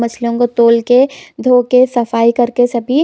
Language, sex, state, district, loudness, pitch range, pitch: Hindi, female, Chhattisgarh, Bilaspur, -12 LUFS, 235-250 Hz, 245 Hz